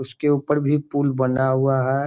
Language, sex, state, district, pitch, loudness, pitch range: Hindi, male, Bihar, Darbhanga, 135 Hz, -21 LUFS, 130-145 Hz